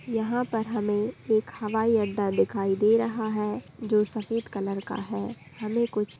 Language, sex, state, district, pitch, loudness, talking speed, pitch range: Hindi, female, Chhattisgarh, Bilaspur, 215 Hz, -27 LUFS, 175 wpm, 205-225 Hz